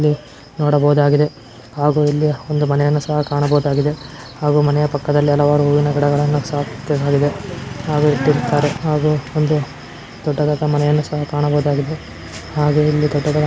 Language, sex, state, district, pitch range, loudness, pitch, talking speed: Kannada, female, Karnataka, Shimoga, 145-150 Hz, -17 LUFS, 145 Hz, 100 wpm